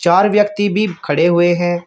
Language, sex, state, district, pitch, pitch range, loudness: Hindi, male, Uttar Pradesh, Shamli, 180 Hz, 175-205 Hz, -14 LUFS